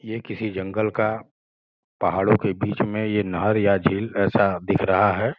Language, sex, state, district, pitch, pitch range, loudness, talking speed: Hindi, male, Uttar Pradesh, Gorakhpur, 105 Hz, 95-110 Hz, -22 LUFS, 180 wpm